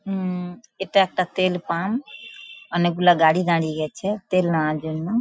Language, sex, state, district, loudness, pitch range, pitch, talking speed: Bengali, female, West Bengal, Paschim Medinipur, -22 LUFS, 170-195 Hz, 180 Hz, 140 wpm